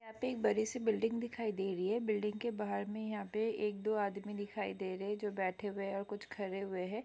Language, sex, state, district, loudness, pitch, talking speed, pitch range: Hindi, female, Goa, North and South Goa, -38 LUFS, 210 Hz, 255 wpm, 200-220 Hz